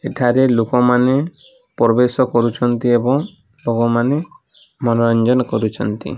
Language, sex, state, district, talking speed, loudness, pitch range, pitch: Odia, male, Odisha, Nuapada, 95 wpm, -16 LUFS, 115-130 Hz, 125 Hz